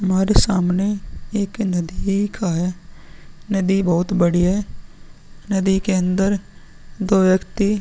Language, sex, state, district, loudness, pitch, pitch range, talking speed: Hindi, male, Uttar Pradesh, Muzaffarnagar, -19 LUFS, 190 Hz, 175-200 Hz, 125 wpm